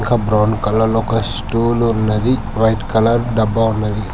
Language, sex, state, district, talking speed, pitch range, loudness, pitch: Telugu, male, Telangana, Hyderabad, 130 wpm, 110-115 Hz, -16 LUFS, 110 Hz